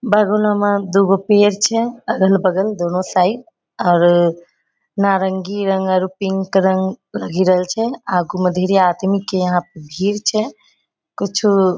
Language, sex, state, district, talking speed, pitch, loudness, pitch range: Angika, female, Bihar, Bhagalpur, 135 wpm, 190 Hz, -16 LUFS, 185-205 Hz